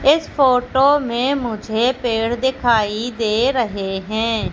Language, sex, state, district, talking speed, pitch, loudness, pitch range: Hindi, female, Madhya Pradesh, Katni, 120 wpm, 240 Hz, -18 LUFS, 220-260 Hz